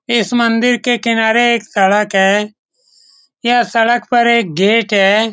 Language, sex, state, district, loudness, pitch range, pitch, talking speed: Hindi, male, Bihar, Saran, -13 LUFS, 210-240 Hz, 230 Hz, 145 wpm